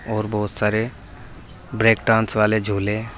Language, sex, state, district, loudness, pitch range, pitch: Hindi, male, Uttar Pradesh, Saharanpur, -20 LUFS, 105-115 Hz, 110 Hz